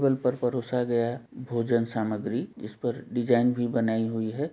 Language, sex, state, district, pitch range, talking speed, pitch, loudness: Hindi, male, Jharkhand, Jamtara, 115-125 Hz, 160 wpm, 120 Hz, -28 LUFS